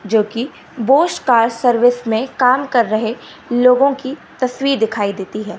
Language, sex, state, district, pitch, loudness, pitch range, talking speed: Hindi, female, Gujarat, Gandhinagar, 245 Hz, -16 LUFS, 220-265 Hz, 160 wpm